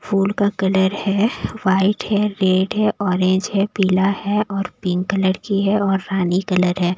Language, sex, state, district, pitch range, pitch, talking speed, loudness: Hindi, female, Maharashtra, Mumbai Suburban, 185-205 Hz, 195 Hz, 180 wpm, -19 LUFS